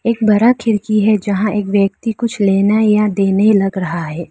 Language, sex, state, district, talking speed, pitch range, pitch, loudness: Hindi, female, Arunachal Pradesh, Lower Dibang Valley, 195 wpm, 195-215 Hz, 210 Hz, -14 LUFS